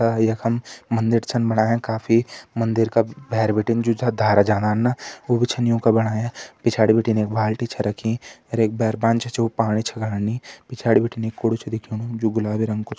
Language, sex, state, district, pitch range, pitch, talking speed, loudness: Hindi, male, Uttarakhand, Uttarkashi, 110-115 Hz, 115 Hz, 200 wpm, -21 LUFS